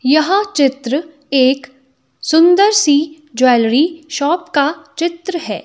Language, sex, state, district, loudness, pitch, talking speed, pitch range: Hindi, female, Himachal Pradesh, Shimla, -14 LUFS, 300 Hz, 105 wpm, 275-340 Hz